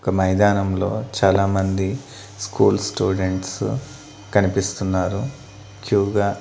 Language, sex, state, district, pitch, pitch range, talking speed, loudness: Telugu, male, Andhra Pradesh, Annamaya, 100 Hz, 95-105 Hz, 75 wpm, -21 LUFS